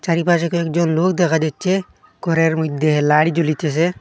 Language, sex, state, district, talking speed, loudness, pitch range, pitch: Bengali, male, Assam, Hailakandi, 135 wpm, -18 LUFS, 155-170 Hz, 165 Hz